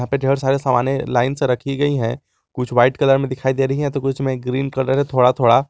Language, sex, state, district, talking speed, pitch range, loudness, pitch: Hindi, male, Jharkhand, Garhwa, 255 wpm, 125-135 Hz, -18 LUFS, 135 Hz